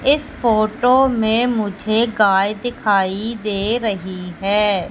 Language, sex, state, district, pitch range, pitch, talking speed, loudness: Hindi, female, Madhya Pradesh, Katni, 200-235 Hz, 215 Hz, 110 wpm, -18 LUFS